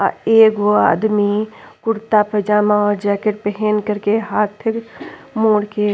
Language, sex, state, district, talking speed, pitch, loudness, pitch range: Bhojpuri, female, Uttar Pradesh, Ghazipur, 140 wpm, 210 Hz, -16 LUFS, 205-220 Hz